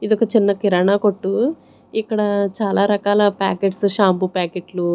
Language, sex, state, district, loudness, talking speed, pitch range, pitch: Telugu, female, Andhra Pradesh, Sri Satya Sai, -18 LUFS, 135 wpm, 195-210 Hz, 200 Hz